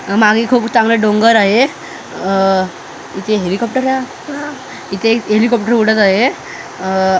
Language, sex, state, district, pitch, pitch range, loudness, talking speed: Marathi, male, Maharashtra, Mumbai Suburban, 225 Hz, 195-245 Hz, -13 LUFS, 135 wpm